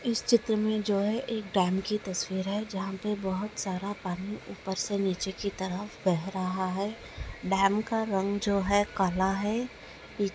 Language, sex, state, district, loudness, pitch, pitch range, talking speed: Hindi, female, Chhattisgarh, Sukma, -30 LUFS, 200 Hz, 190-210 Hz, 180 wpm